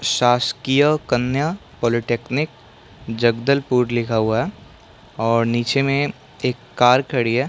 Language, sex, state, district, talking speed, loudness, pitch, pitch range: Hindi, male, Chhattisgarh, Bastar, 105 wpm, -19 LUFS, 125 Hz, 120-135 Hz